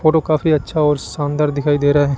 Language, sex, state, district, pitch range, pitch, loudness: Hindi, male, Rajasthan, Bikaner, 145-155 Hz, 150 Hz, -17 LUFS